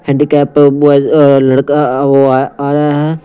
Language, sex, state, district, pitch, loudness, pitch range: Hindi, male, Punjab, Pathankot, 145 Hz, -9 LUFS, 140-145 Hz